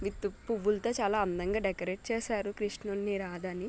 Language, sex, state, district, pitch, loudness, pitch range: Telugu, female, Telangana, Nalgonda, 205 Hz, -33 LUFS, 195-210 Hz